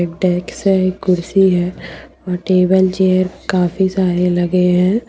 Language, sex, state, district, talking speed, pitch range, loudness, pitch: Hindi, female, Jharkhand, Deoghar, 105 wpm, 180-190 Hz, -15 LUFS, 185 Hz